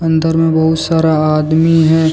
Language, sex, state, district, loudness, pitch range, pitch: Hindi, male, Jharkhand, Deoghar, -12 LUFS, 160-165 Hz, 160 Hz